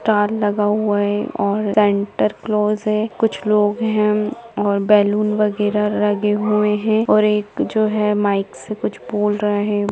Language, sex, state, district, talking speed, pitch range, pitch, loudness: Hindi, female, Bihar, Lakhisarai, 165 wpm, 205-215 Hz, 210 Hz, -18 LUFS